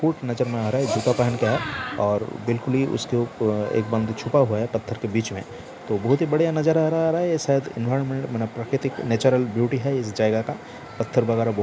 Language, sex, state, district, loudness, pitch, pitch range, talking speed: Hindi, male, Bihar, Jamui, -23 LUFS, 120 Hz, 115-135 Hz, 240 wpm